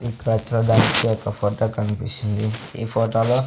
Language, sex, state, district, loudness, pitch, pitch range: Telugu, male, Andhra Pradesh, Sri Satya Sai, -21 LUFS, 115 Hz, 110-115 Hz